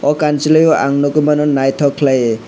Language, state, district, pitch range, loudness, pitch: Kokborok, Tripura, West Tripura, 135-150 Hz, -13 LUFS, 145 Hz